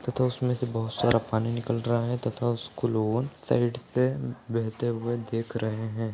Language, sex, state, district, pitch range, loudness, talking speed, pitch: Hindi, male, Uttar Pradesh, Ghazipur, 115-125 Hz, -28 LUFS, 195 wpm, 120 Hz